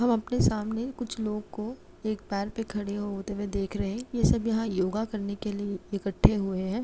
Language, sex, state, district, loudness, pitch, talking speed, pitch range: Hindi, female, Uttar Pradesh, Jalaun, -30 LUFS, 210 Hz, 210 wpm, 200-225 Hz